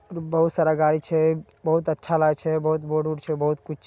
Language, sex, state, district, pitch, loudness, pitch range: Maithili, male, Bihar, Saharsa, 155 Hz, -23 LUFS, 155-160 Hz